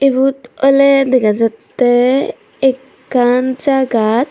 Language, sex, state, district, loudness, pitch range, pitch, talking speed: Chakma, female, Tripura, Dhalai, -13 LUFS, 245-270 Hz, 260 Hz, 85 wpm